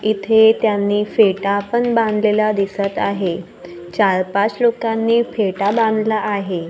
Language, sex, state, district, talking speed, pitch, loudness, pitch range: Marathi, female, Maharashtra, Gondia, 115 wpm, 210 Hz, -17 LUFS, 195-220 Hz